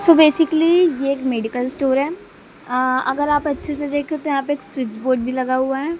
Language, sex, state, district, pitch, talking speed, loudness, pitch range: Hindi, female, Madhya Pradesh, Katni, 275 Hz, 230 wpm, -19 LUFS, 255-305 Hz